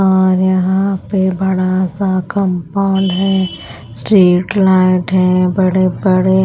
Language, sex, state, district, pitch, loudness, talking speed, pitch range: Hindi, female, Punjab, Pathankot, 185 Hz, -13 LUFS, 110 wpm, 185-190 Hz